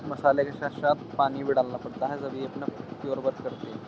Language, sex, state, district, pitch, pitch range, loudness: Hindi, male, Uttar Pradesh, Jyotiba Phule Nagar, 140 Hz, 135-145 Hz, -29 LUFS